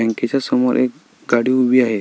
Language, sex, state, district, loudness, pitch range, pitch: Marathi, male, Maharashtra, Sindhudurg, -17 LUFS, 120-130 Hz, 125 Hz